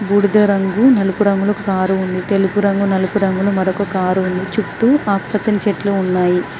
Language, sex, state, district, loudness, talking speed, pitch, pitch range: Telugu, female, Telangana, Mahabubabad, -16 LUFS, 155 wpm, 200 Hz, 190-205 Hz